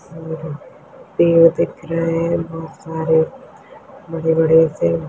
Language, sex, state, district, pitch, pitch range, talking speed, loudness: Hindi, female, Chhattisgarh, Balrampur, 165 Hz, 160-165 Hz, 95 wpm, -17 LUFS